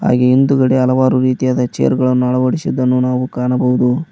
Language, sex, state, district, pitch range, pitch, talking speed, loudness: Kannada, male, Karnataka, Koppal, 125-130 Hz, 125 Hz, 130 wpm, -14 LUFS